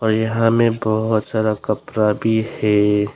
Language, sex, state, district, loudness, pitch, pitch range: Hindi, male, Arunachal Pradesh, Longding, -18 LUFS, 110 Hz, 105-110 Hz